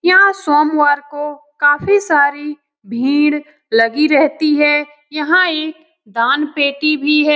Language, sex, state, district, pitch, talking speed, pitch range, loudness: Hindi, female, Bihar, Lakhisarai, 295 Hz, 115 wpm, 290-305 Hz, -14 LUFS